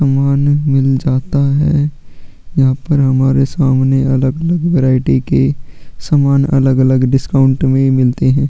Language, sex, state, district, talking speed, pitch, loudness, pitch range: Hindi, male, Chhattisgarh, Sukma, 135 wpm, 135 Hz, -13 LUFS, 130-140 Hz